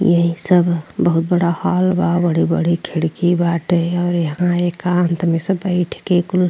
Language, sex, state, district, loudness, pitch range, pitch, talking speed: Bhojpuri, female, Uttar Pradesh, Ghazipur, -17 LUFS, 170-180 Hz, 175 Hz, 165 wpm